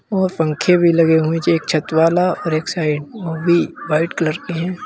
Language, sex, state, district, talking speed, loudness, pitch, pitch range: Hindi, male, Uttar Pradesh, Lalitpur, 210 wpm, -17 LUFS, 165 Hz, 160-175 Hz